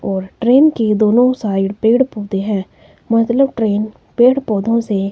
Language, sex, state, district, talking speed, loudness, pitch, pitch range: Hindi, female, Himachal Pradesh, Shimla, 150 wpm, -15 LUFS, 220 Hz, 205-245 Hz